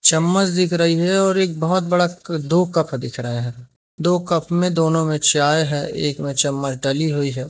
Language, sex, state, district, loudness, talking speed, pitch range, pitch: Hindi, male, Madhya Pradesh, Umaria, -19 LUFS, 210 wpm, 140-175 Hz, 160 Hz